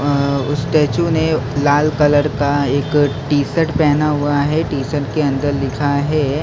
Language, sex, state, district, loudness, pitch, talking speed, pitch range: Hindi, male, Maharashtra, Mumbai Suburban, -16 LUFS, 145 Hz, 160 wpm, 140-150 Hz